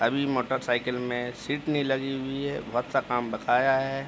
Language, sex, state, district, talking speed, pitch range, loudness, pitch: Hindi, male, Uttar Pradesh, Jalaun, 190 wpm, 120-135 Hz, -28 LUFS, 130 Hz